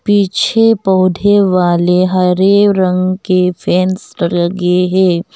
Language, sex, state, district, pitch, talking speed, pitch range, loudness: Hindi, female, Arunachal Pradesh, Longding, 185 Hz, 100 wpm, 180-195 Hz, -12 LUFS